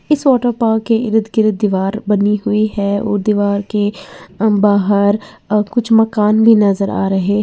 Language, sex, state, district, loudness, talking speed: Hindi, female, Uttar Pradesh, Lalitpur, -14 LUFS, 175 wpm